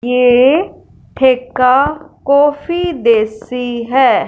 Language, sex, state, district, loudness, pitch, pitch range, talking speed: Hindi, female, Punjab, Fazilka, -13 LUFS, 260 Hz, 245-290 Hz, 70 wpm